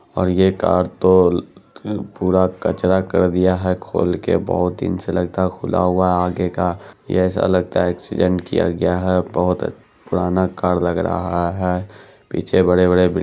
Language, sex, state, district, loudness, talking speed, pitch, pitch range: Hindi, male, Bihar, Araria, -18 LUFS, 170 wpm, 90 Hz, 90-95 Hz